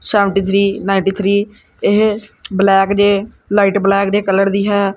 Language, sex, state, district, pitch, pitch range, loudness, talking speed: Punjabi, male, Punjab, Kapurthala, 200 Hz, 195-205 Hz, -14 LUFS, 155 wpm